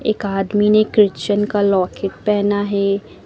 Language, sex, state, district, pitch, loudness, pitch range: Hindi, female, Uttar Pradesh, Lucknow, 205 Hz, -17 LUFS, 195-210 Hz